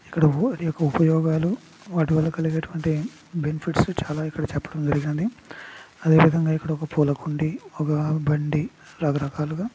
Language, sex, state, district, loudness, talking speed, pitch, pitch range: Telugu, male, Andhra Pradesh, Guntur, -24 LUFS, 115 wpm, 155 Hz, 150-165 Hz